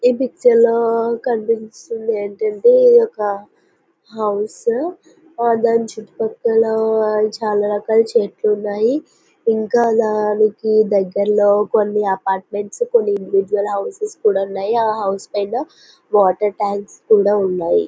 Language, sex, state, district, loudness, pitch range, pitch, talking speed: Telugu, female, Andhra Pradesh, Visakhapatnam, -17 LUFS, 205-240 Hz, 220 Hz, 110 wpm